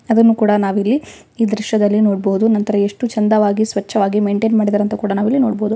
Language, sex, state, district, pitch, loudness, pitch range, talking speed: Kannada, female, Karnataka, Bellary, 215 Hz, -16 LUFS, 205-220 Hz, 185 wpm